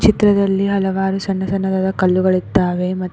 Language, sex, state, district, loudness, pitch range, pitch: Kannada, female, Karnataka, Koppal, -17 LUFS, 185-195 Hz, 190 Hz